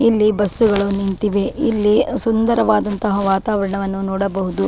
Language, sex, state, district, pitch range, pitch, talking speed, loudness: Kannada, female, Karnataka, Dakshina Kannada, 195-215 Hz, 205 Hz, 115 wpm, -17 LUFS